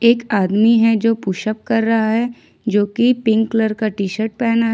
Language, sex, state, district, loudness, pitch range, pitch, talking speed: Hindi, female, Jharkhand, Ranchi, -17 LUFS, 215-230 Hz, 225 Hz, 215 wpm